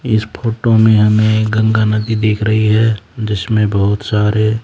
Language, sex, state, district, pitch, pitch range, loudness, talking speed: Hindi, male, Haryana, Charkhi Dadri, 110 Hz, 105-110 Hz, -14 LUFS, 155 wpm